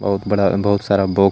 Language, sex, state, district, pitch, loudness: Hindi, male, Jharkhand, Garhwa, 100 Hz, -17 LUFS